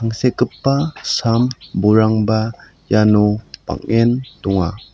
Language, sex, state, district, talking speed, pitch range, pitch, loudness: Garo, male, Meghalaya, South Garo Hills, 75 wpm, 105-125 Hz, 115 Hz, -17 LUFS